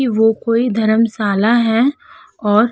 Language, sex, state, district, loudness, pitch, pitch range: Hindi, female, Uttar Pradesh, Hamirpur, -15 LUFS, 225 Hz, 220-240 Hz